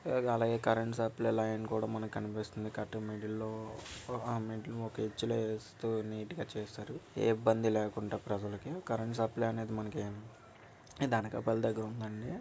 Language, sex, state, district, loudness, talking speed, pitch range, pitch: Telugu, male, Andhra Pradesh, Visakhapatnam, -36 LUFS, 45 wpm, 110-115 Hz, 110 Hz